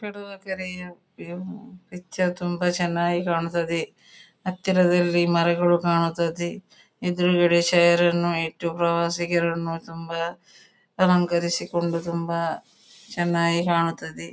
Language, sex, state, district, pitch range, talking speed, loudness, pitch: Kannada, female, Karnataka, Dakshina Kannada, 170-180 Hz, 70 wpm, -23 LUFS, 175 Hz